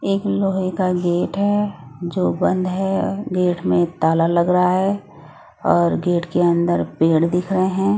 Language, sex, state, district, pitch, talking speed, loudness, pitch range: Hindi, female, Odisha, Nuapada, 180 Hz, 165 wpm, -19 LUFS, 165-190 Hz